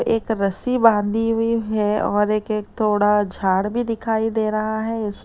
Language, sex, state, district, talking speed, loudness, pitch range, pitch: Hindi, female, Uttar Pradesh, Lalitpur, 185 wpm, -20 LUFS, 210-225 Hz, 215 Hz